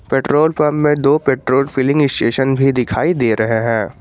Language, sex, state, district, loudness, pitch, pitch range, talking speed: Hindi, male, Jharkhand, Garhwa, -15 LUFS, 135 Hz, 120-150 Hz, 180 wpm